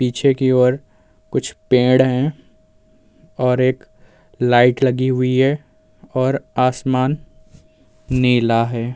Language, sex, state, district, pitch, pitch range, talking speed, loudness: Hindi, male, Uttar Pradesh, Muzaffarnagar, 125 Hz, 120-130 Hz, 105 wpm, -17 LUFS